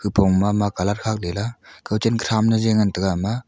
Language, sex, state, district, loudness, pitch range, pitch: Wancho, male, Arunachal Pradesh, Longding, -21 LUFS, 100-110 Hz, 105 Hz